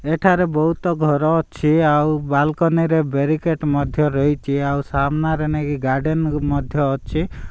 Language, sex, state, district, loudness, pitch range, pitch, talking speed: Odia, male, Odisha, Malkangiri, -19 LUFS, 140-160 Hz, 150 Hz, 130 wpm